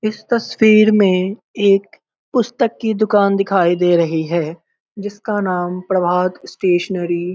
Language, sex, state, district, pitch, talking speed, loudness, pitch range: Hindi, male, Bihar, Muzaffarpur, 195 Hz, 130 wpm, -16 LUFS, 180-215 Hz